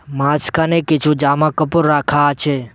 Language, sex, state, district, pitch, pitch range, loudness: Bengali, male, West Bengal, Cooch Behar, 150 Hz, 145-155 Hz, -15 LUFS